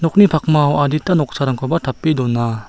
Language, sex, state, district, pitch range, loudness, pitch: Garo, male, Meghalaya, South Garo Hills, 130-160 Hz, -16 LUFS, 150 Hz